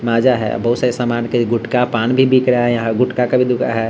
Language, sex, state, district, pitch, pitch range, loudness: Hindi, male, Bihar, Vaishali, 120 Hz, 115-125 Hz, -16 LUFS